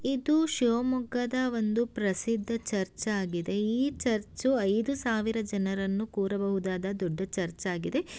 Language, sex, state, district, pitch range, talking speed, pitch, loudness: Kannada, female, Karnataka, Shimoga, 195-245 Hz, 115 wpm, 220 Hz, -30 LUFS